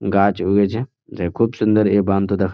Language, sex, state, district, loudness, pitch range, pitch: Bengali, male, West Bengal, Jhargram, -18 LUFS, 100-105 Hz, 100 Hz